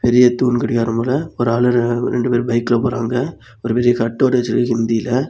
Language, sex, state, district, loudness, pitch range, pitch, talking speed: Tamil, male, Tamil Nadu, Kanyakumari, -17 LUFS, 115-125 Hz, 120 Hz, 190 wpm